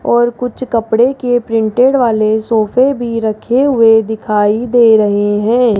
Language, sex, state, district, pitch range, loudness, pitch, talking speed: Hindi, female, Rajasthan, Jaipur, 220-245 Hz, -12 LUFS, 230 Hz, 145 wpm